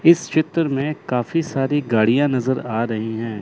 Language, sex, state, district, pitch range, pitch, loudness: Hindi, male, Chandigarh, Chandigarh, 115-155 Hz, 135 Hz, -20 LUFS